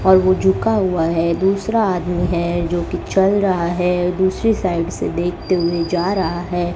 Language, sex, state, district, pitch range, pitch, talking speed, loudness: Hindi, male, Rajasthan, Bikaner, 175-190 Hz, 180 Hz, 185 wpm, -18 LUFS